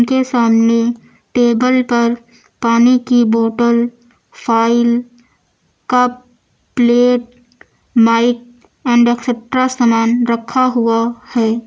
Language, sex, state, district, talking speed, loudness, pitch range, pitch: Hindi, female, Uttar Pradesh, Lucknow, 85 wpm, -14 LUFS, 235-245 Hz, 240 Hz